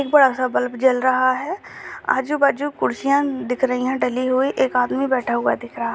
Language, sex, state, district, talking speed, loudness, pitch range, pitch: Hindi, female, Bihar, Jamui, 190 wpm, -20 LUFS, 250-275 Hz, 260 Hz